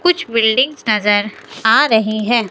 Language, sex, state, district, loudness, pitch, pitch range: Hindi, female, Himachal Pradesh, Shimla, -14 LUFS, 225 Hz, 215-255 Hz